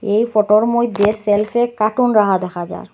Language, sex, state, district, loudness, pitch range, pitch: Bengali, female, Assam, Hailakandi, -16 LUFS, 205-235 Hz, 215 Hz